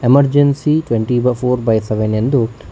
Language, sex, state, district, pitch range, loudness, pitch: Kannada, male, Karnataka, Bangalore, 110-140 Hz, -15 LUFS, 125 Hz